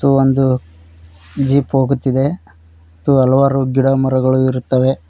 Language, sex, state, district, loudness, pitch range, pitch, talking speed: Kannada, male, Karnataka, Koppal, -15 LUFS, 85-135 Hz, 130 Hz, 85 wpm